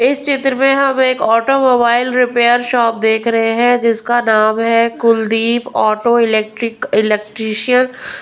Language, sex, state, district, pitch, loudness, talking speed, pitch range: Hindi, female, Punjab, Pathankot, 235 Hz, -13 LUFS, 140 wpm, 225-250 Hz